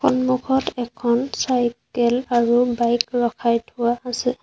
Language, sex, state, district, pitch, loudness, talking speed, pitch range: Assamese, female, Assam, Sonitpur, 245 Hz, -21 LUFS, 110 wpm, 235-250 Hz